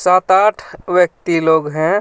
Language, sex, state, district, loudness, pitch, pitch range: Hindi, male, Jharkhand, Ranchi, -14 LUFS, 180 Hz, 160-185 Hz